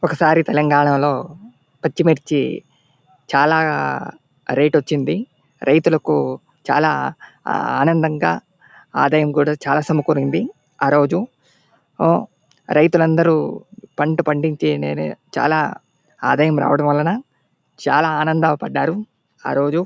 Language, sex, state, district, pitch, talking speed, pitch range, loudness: Telugu, male, Andhra Pradesh, Anantapur, 155 Hz, 80 wpm, 145-165 Hz, -18 LUFS